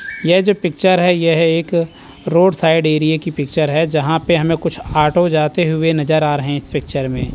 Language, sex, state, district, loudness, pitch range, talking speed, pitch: Hindi, male, Chandigarh, Chandigarh, -15 LUFS, 155-170 Hz, 210 wpm, 160 Hz